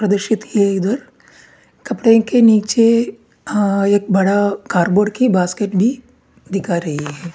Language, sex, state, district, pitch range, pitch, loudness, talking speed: Hindi, male, Uttarakhand, Tehri Garhwal, 195-225 Hz, 205 Hz, -16 LUFS, 130 wpm